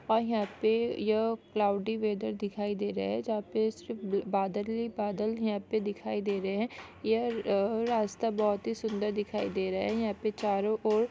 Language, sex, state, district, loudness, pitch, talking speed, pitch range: Hindi, female, Chhattisgarh, Sukma, -31 LUFS, 215 Hz, 205 wpm, 205-220 Hz